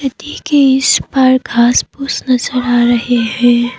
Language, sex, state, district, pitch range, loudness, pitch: Hindi, female, Assam, Kamrup Metropolitan, 240-270 Hz, -12 LUFS, 250 Hz